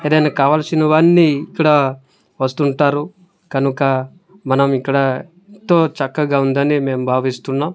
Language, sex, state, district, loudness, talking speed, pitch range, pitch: Telugu, male, Andhra Pradesh, Manyam, -16 LUFS, 100 wpm, 135-155 Hz, 145 Hz